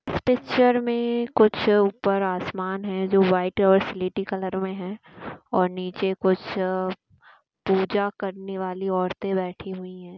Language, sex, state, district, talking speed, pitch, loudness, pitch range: Hindi, female, Bihar, East Champaran, 135 wpm, 190 Hz, -24 LUFS, 185-200 Hz